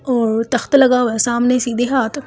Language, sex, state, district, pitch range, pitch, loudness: Hindi, female, Delhi, New Delhi, 235-260 Hz, 245 Hz, -15 LUFS